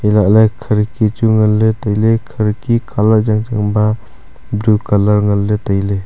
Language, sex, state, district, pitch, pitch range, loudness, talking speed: Wancho, male, Arunachal Pradesh, Longding, 105 Hz, 105-110 Hz, -14 LUFS, 200 wpm